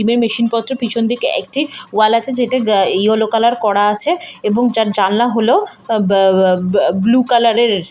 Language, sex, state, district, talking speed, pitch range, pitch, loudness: Bengali, female, West Bengal, Malda, 165 wpm, 205-240 Hz, 230 Hz, -14 LUFS